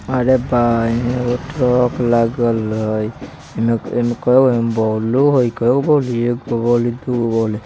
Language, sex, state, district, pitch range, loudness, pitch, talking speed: Bajjika, male, Bihar, Vaishali, 115-125 Hz, -16 LUFS, 120 Hz, 140 wpm